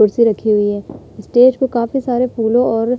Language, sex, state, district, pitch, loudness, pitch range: Hindi, female, Uttar Pradesh, Budaun, 235 Hz, -15 LUFS, 220-250 Hz